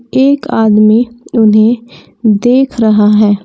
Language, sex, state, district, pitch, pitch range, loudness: Hindi, female, Jharkhand, Palamu, 225 Hz, 215-245 Hz, -9 LUFS